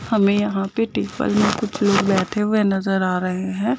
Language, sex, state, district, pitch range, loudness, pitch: Hindi, female, Jharkhand, Sahebganj, 195-210 Hz, -20 LUFS, 205 Hz